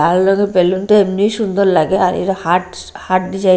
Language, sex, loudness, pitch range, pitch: Bengali, female, -14 LUFS, 185-200 Hz, 190 Hz